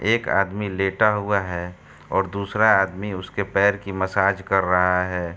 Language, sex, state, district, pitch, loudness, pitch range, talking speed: Hindi, male, Uttar Pradesh, Hamirpur, 95 Hz, -21 LUFS, 90-100 Hz, 170 wpm